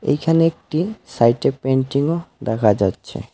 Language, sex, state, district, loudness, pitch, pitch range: Bengali, male, West Bengal, Alipurduar, -19 LUFS, 140 Hz, 115-165 Hz